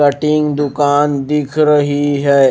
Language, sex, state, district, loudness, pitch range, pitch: Hindi, male, Himachal Pradesh, Shimla, -14 LUFS, 140-150 Hz, 145 Hz